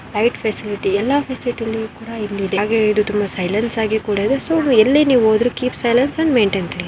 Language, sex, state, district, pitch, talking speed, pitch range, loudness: Kannada, female, Karnataka, Belgaum, 220 Hz, 175 wpm, 210-250 Hz, -17 LUFS